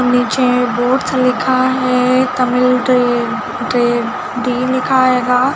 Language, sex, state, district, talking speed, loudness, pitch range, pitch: Hindi, female, Chhattisgarh, Balrampur, 85 wpm, -14 LUFS, 250-255 Hz, 250 Hz